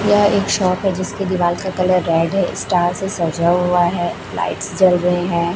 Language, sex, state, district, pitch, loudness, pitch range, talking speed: Hindi, female, Chhattisgarh, Raipur, 180 Hz, -17 LUFS, 175-195 Hz, 205 wpm